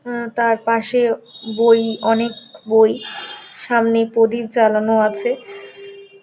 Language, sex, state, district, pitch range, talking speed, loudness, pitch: Bengali, female, West Bengal, Dakshin Dinajpur, 225-250 Hz, 105 wpm, -17 LUFS, 230 Hz